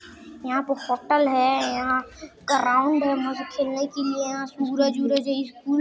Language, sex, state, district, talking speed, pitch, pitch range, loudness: Hindi, male, Chhattisgarh, Sarguja, 165 wpm, 275 Hz, 260-280 Hz, -24 LUFS